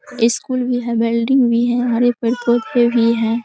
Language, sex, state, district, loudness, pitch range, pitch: Hindi, female, Bihar, Araria, -16 LUFS, 230-245 Hz, 240 Hz